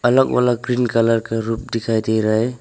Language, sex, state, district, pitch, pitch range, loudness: Hindi, male, Arunachal Pradesh, Longding, 115 Hz, 110-125 Hz, -18 LUFS